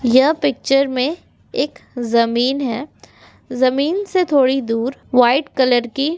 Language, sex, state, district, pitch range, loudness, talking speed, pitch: Hindi, female, Rajasthan, Nagaur, 245-280 Hz, -17 LUFS, 135 wpm, 260 Hz